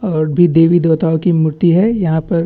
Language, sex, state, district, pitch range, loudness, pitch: Hindi, male, Chhattisgarh, Bastar, 160-175 Hz, -13 LUFS, 165 Hz